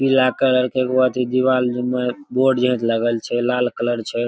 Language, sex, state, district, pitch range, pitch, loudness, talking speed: Maithili, male, Bihar, Darbhanga, 120-130 Hz, 125 Hz, -19 LUFS, 195 wpm